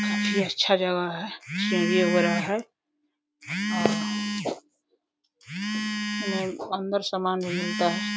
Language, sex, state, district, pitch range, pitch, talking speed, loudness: Hindi, male, Uttar Pradesh, Deoria, 185-215 Hz, 205 Hz, 90 wpm, -26 LUFS